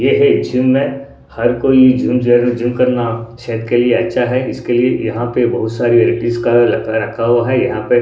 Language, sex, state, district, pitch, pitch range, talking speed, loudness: Hindi, male, Odisha, Sambalpur, 120 Hz, 120-125 Hz, 210 wpm, -14 LUFS